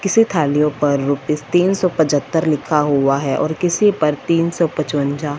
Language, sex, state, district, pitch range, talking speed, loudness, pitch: Hindi, female, Punjab, Fazilka, 145-170 Hz, 180 wpm, -17 LUFS, 150 Hz